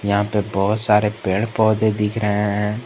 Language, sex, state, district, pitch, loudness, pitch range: Hindi, male, Jharkhand, Garhwa, 105 Hz, -19 LUFS, 105-110 Hz